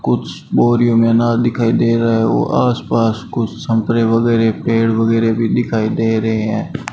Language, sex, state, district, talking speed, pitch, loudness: Hindi, male, Rajasthan, Bikaner, 175 wpm, 115 Hz, -15 LUFS